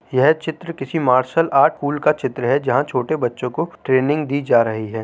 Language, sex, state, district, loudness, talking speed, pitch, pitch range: Hindi, male, Uttar Pradesh, Jyotiba Phule Nagar, -18 LUFS, 215 wpm, 135 Hz, 125-155 Hz